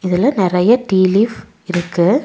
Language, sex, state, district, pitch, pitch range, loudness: Tamil, female, Tamil Nadu, Nilgiris, 185 Hz, 180-210 Hz, -15 LUFS